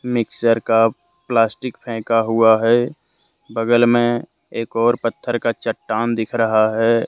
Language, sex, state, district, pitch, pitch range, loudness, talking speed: Hindi, male, Jharkhand, Deoghar, 115 Hz, 115-120 Hz, -18 LUFS, 135 wpm